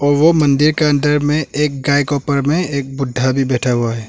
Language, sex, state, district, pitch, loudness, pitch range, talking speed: Hindi, male, Arunachal Pradesh, Longding, 145 Hz, -15 LUFS, 135-150 Hz, 220 wpm